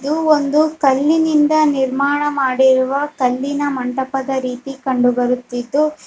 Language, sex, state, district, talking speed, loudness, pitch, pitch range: Kannada, female, Karnataka, Bellary, 80 wpm, -16 LUFS, 270 Hz, 260-295 Hz